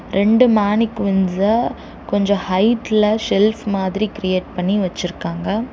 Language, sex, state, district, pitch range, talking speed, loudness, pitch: Tamil, female, Tamil Nadu, Chennai, 190-220 Hz, 95 wpm, -18 LUFS, 205 Hz